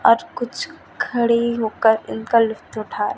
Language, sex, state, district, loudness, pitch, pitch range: Hindi, female, Chhattisgarh, Raipur, -20 LUFS, 225 Hz, 215-235 Hz